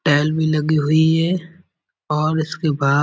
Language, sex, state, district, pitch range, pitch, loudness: Hindi, male, Uttar Pradesh, Budaun, 150-160 Hz, 155 Hz, -18 LUFS